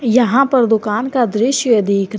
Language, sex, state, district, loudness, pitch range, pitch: Hindi, female, Jharkhand, Garhwa, -14 LUFS, 215-255 Hz, 235 Hz